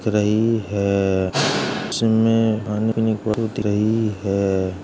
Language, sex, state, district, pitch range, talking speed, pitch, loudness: Hindi, male, Uttar Pradesh, Jalaun, 100-110 Hz, 60 wpm, 105 Hz, -20 LUFS